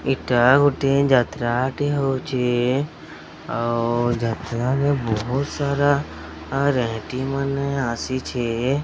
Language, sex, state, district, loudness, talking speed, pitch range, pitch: Odia, male, Odisha, Sambalpur, -21 LUFS, 75 wpm, 120-140 Hz, 130 Hz